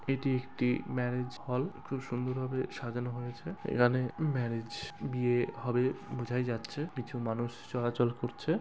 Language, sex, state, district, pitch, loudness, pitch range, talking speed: Bengali, male, West Bengal, Kolkata, 125 Hz, -34 LUFS, 120-130 Hz, 140 wpm